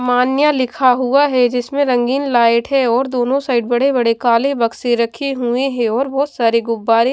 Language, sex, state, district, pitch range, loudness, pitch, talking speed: Hindi, female, Haryana, Jhajjar, 235-270 Hz, -15 LUFS, 250 Hz, 195 wpm